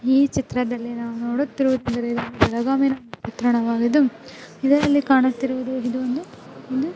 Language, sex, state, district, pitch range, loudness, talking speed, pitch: Kannada, female, Karnataka, Belgaum, 240-270 Hz, -21 LUFS, 95 wpm, 255 Hz